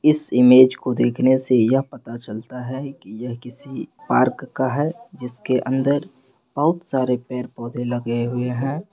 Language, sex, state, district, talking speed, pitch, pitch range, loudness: Hindi, male, Bihar, Supaul, 155 wpm, 130 Hz, 125-135 Hz, -20 LUFS